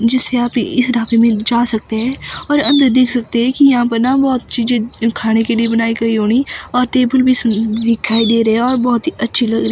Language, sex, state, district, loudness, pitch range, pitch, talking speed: Hindi, female, Himachal Pradesh, Shimla, -14 LUFS, 230-255 Hz, 235 Hz, 240 wpm